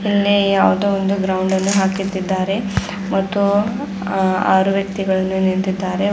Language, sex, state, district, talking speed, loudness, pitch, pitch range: Kannada, female, Karnataka, Bidar, 110 wpm, -18 LUFS, 195 Hz, 190-200 Hz